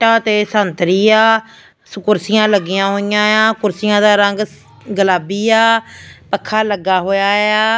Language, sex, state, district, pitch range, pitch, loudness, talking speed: Punjabi, female, Punjab, Fazilka, 200-220 Hz, 210 Hz, -14 LUFS, 130 wpm